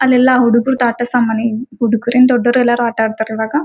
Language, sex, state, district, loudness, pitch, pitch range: Kannada, female, Karnataka, Gulbarga, -14 LUFS, 240 Hz, 230-250 Hz